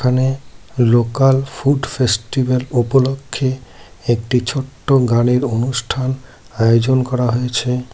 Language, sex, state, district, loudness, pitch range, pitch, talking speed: Bengali, male, West Bengal, Cooch Behar, -17 LUFS, 120-135 Hz, 125 Hz, 90 wpm